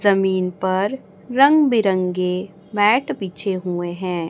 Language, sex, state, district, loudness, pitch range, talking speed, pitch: Hindi, female, Chhattisgarh, Raipur, -19 LUFS, 180-205 Hz, 110 wpm, 190 Hz